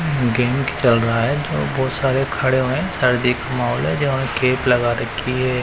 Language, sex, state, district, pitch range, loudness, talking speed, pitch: Hindi, male, Chandigarh, Chandigarh, 125-135 Hz, -19 LUFS, 190 wpm, 130 Hz